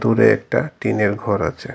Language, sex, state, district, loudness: Bengali, male, Tripura, Dhalai, -19 LUFS